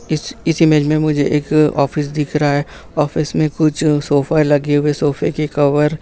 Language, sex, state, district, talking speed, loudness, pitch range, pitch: Hindi, male, Bihar, Jamui, 200 wpm, -16 LUFS, 145-155 Hz, 150 Hz